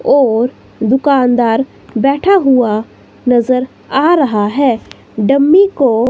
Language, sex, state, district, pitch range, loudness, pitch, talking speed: Hindi, female, Himachal Pradesh, Shimla, 235-280 Hz, -12 LUFS, 260 Hz, 100 wpm